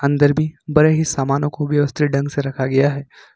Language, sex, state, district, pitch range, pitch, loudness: Hindi, male, Jharkhand, Ranchi, 140-150 Hz, 145 Hz, -18 LUFS